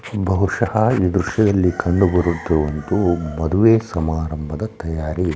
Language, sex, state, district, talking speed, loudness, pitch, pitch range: Kannada, male, Karnataka, Shimoga, 80 wpm, -19 LUFS, 90 Hz, 80-100 Hz